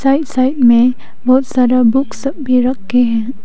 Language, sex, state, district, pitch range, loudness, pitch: Hindi, female, Arunachal Pradesh, Papum Pare, 245-265 Hz, -13 LUFS, 255 Hz